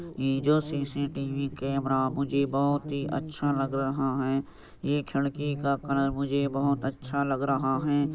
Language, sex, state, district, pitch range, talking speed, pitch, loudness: Hindi, male, Uttar Pradesh, Jyotiba Phule Nagar, 135-140 Hz, 160 wpm, 140 Hz, -28 LUFS